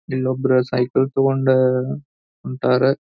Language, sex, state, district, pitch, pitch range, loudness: Kannada, male, Karnataka, Belgaum, 130 Hz, 125-130 Hz, -19 LUFS